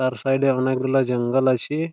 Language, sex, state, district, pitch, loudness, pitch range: Bengali, male, West Bengal, Malda, 130 Hz, -21 LUFS, 130-135 Hz